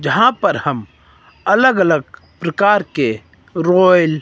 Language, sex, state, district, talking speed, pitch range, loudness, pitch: Hindi, male, Himachal Pradesh, Shimla, 130 wpm, 115-185 Hz, -15 LUFS, 165 Hz